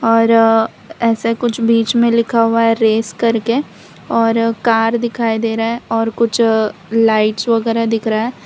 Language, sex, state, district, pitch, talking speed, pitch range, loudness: Hindi, female, Gujarat, Valsad, 230 Hz, 165 wpm, 225-230 Hz, -15 LUFS